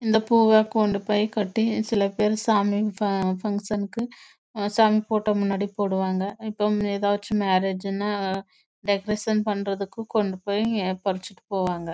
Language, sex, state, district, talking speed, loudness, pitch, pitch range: Tamil, female, Karnataka, Chamarajanagar, 80 wpm, -24 LUFS, 205 Hz, 195-215 Hz